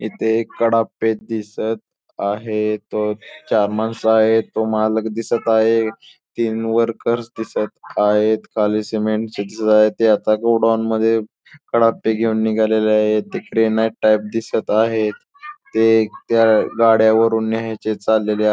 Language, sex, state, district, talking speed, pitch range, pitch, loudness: Marathi, male, Maharashtra, Pune, 135 wpm, 110-115 Hz, 110 Hz, -18 LUFS